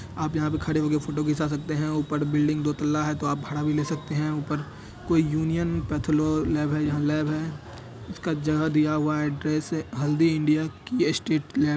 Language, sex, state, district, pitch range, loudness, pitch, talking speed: Hindi, male, Bihar, Madhepura, 150-155 Hz, -26 LUFS, 150 Hz, 215 wpm